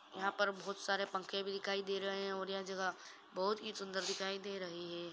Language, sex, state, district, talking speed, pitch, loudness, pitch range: Hindi, female, Bihar, Saran, 235 wpm, 195 Hz, -40 LUFS, 190-195 Hz